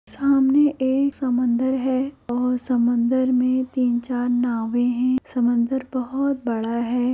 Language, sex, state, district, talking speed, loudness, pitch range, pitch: Hindi, female, Uttar Pradesh, Jyotiba Phule Nagar, 135 wpm, -21 LUFS, 245-260 Hz, 250 Hz